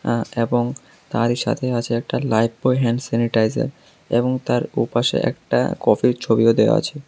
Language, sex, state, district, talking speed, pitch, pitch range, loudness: Bengali, male, Tripura, South Tripura, 155 wpm, 120 Hz, 115-125 Hz, -20 LUFS